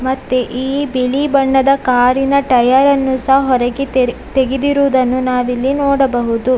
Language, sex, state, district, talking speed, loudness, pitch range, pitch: Kannada, female, Karnataka, Dakshina Kannada, 110 wpm, -14 LUFS, 255-275 Hz, 260 Hz